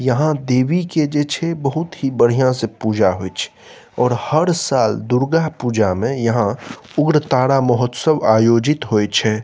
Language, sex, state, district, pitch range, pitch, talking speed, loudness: Maithili, male, Bihar, Saharsa, 115-150 Hz, 130 Hz, 160 wpm, -17 LUFS